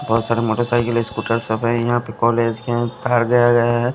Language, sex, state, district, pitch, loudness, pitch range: Hindi, male, Punjab, Kapurthala, 120 Hz, -18 LUFS, 115-120 Hz